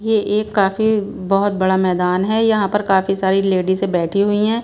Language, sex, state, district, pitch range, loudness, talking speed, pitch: Hindi, female, Bihar, Patna, 190-210 Hz, -17 LUFS, 195 wpm, 195 Hz